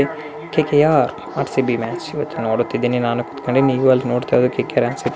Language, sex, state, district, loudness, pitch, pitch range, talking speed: Kannada, female, Karnataka, Bijapur, -18 LUFS, 130 Hz, 125-145 Hz, 70 wpm